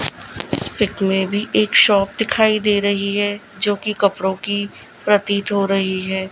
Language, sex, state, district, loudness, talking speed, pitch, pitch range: Hindi, female, Gujarat, Gandhinagar, -18 LUFS, 170 wpm, 200 Hz, 195-205 Hz